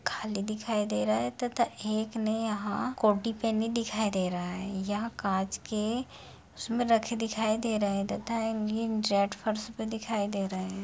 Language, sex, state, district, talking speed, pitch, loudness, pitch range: Hindi, female, Jharkhand, Sahebganj, 190 wpm, 215 Hz, -31 LUFS, 200-225 Hz